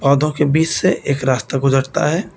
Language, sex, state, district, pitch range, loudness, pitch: Hindi, male, Uttar Pradesh, Lucknow, 135-150 Hz, -17 LUFS, 140 Hz